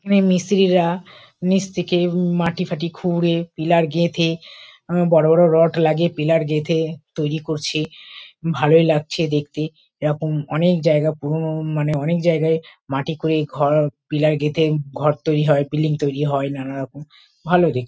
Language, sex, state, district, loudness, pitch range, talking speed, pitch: Bengali, female, West Bengal, Kolkata, -19 LUFS, 150-170 Hz, 140 wpm, 160 Hz